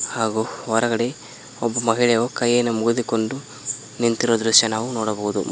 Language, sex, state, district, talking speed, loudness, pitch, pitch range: Kannada, male, Karnataka, Koppal, 110 wpm, -21 LUFS, 115 Hz, 110-120 Hz